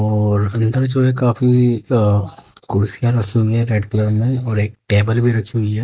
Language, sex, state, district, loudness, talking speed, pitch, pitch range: Hindi, male, Haryana, Jhajjar, -17 LUFS, 195 wpm, 110 Hz, 105-120 Hz